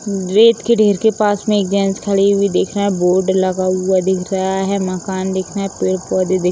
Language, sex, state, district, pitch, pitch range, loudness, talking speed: Hindi, female, Bihar, Vaishali, 190 Hz, 185-200 Hz, -16 LUFS, 230 wpm